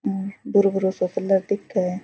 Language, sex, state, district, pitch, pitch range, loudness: Rajasthani, female, Rajasthan, Churu, 195 Hz, 190-200 Hz, -22 LUFS